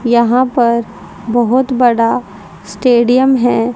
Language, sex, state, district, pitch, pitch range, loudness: Hindi, female, Haryana, Rohtak, 235 Hz, 225-250 Hz, -12 LUFS